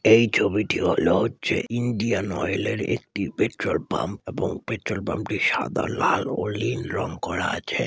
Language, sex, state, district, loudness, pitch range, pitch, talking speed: Bengali, male, West Bengal, Malda, -24 LUFS, 100-120 Hz, 115 Hz, 145 wpm